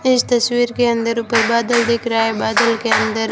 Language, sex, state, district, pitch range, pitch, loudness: Hindi, female, Rajasthan, Jaisalmer, 230-240 Hz, 235 Hz, -16 LUFS